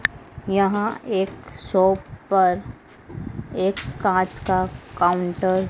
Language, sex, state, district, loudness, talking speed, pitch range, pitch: Hindi, female, Madhya Pradesh, Dhar, -22 LUFS, 95 wpm, 180-195 Hz, 190 Hz